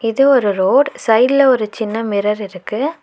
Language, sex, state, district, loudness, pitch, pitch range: Tamil, female, Tamil Nadu, Nilgiris, -15 LUFS, 225 Hz, 210-270 Hz